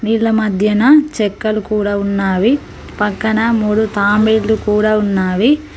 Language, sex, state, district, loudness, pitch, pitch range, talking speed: Telugu, female, Telangana, Mahabubabad, -14 LUFS, 215 Hz, 205-220 Hz, 105 wpm